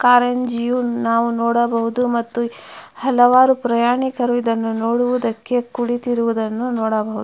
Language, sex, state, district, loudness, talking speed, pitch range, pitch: Kannada, female, Karnataka, Mysore, -18 LUFS, 90 wpm, 230-245 Hz, 240 Hz